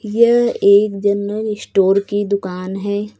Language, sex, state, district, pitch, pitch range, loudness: Hindi, female, Uttar Pradesh, Lucknow, 205 Hz, 200-215 Hz, -16 LUFS